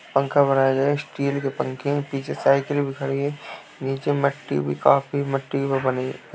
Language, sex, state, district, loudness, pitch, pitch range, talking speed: Hindi, male, Uttar Pradesh, Jalaun, -23 LUFS, 140 Hz, 135-140 Hz, 190 wpm